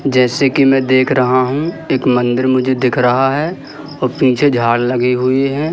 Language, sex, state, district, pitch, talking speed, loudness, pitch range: Hindi, male, Madhya Pradesh, Katni, 130 Hz, 190 wpm, -14 LUFS, 125-140 Hz